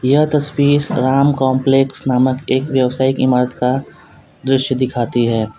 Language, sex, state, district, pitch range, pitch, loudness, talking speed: Hindi, male, Uttar Pradesh, Lalitpur, 125-135 Hz, 130 Hz, -15 LUFS, 130 wpm